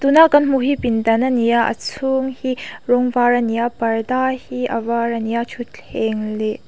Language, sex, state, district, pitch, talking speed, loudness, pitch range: Mizo, female, Mizoram, Aizawl, 240 Hz, 205 wpm, -18 LUFS, 230-260 Hz